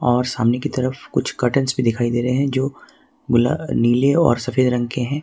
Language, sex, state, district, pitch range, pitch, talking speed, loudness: Hindi, male, Jharkhand, Ranchi, 120-135 Hz, 125 Hz, 220 wpm, -19 LUFS